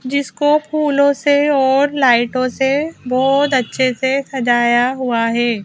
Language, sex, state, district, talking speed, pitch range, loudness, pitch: Hindi, female, Madhya Pradesh, Bhopal, 125 wpm, 250-285 Hz, -15 LUFS, 265 Hz